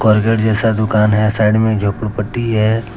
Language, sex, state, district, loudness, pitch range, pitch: Hindi, male, Jharkhand, Deoghar, -15 LUFS, 105-110 Hz, 110 Hz